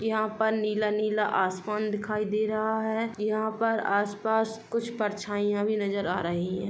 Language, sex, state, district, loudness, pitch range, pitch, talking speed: Hindi, female, Uttar Pradesh, Jalaun, -28 LUFS, 205-220 Hz, 215 Hz, 160 wpm